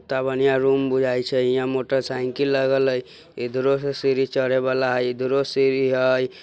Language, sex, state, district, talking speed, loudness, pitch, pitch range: Bajjika, male, Bihar, Vaishali, 170 wpm, -21 LUFS, 130 Hz, 130-135 Hz